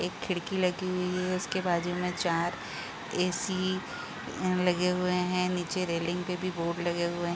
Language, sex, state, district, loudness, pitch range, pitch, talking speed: Hindi, female, Bihar, East Champaran, -30 LUFS, 175-185 Hz, 180 Hz, 180 wpm